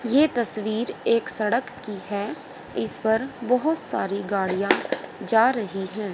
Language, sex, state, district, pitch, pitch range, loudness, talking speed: Hindi, female, Haryana, Rohtak, 220 Hz, 205-250 Hz, -24 LUFS, 135 wpm